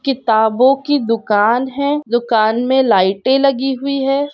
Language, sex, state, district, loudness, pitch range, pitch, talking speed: Hindi, female, Bihar, Darbhanga, -15 LUFS, 230-275 Hz, 260 Hz, 150 wpm